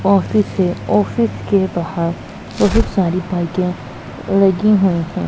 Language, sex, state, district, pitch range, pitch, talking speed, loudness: Hindi, female, Punjab, Pathankot, 170-195 Hz, 185 Hz, 125 wpm, -16 LUFS